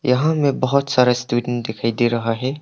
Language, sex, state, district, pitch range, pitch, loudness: Hindi, male, Arunachal Pradesh, Papum Pare, 120-135 Hz, 125 Hz, -19 LUFS